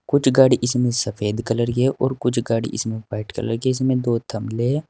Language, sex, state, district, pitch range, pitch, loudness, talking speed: Hindi, male, Uttar Pradesh, Saharanpur, 115-130 Hz, 120 Hz, -21 LUFS, 220 wpm